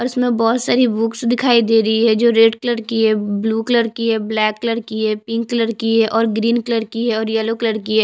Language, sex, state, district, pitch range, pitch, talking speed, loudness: Hindi, female, Chhattisgarh, Jashpur, 220-235 Hz, 225 Hz, 270 wpm, -17 LUFS